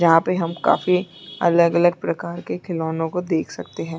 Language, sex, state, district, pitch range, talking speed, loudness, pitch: Hindi, female, Chhattisgarh, Bilaspur, 165-180 Hz, 180 wpm, -21 LUFS, 170 Hz